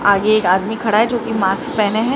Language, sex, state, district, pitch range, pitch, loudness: Hindi, male, Maharashtra, Mumbai Suburban, 200-225 Hz, 215 Hz, -16 LUFS